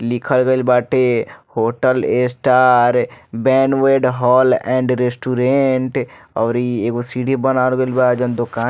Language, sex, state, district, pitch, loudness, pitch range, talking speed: Bhojpuri, male, Bihar, Muzaffarpur, 125 Hz, -16 LUFS, 120-130 Hz, 140 wpm